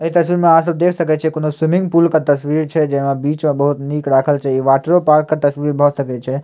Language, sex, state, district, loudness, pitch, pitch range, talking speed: Maithili, male, Bihar, Samastipur, -15 LUFS, 150 Hz, 140-165 Hz, 260 wpm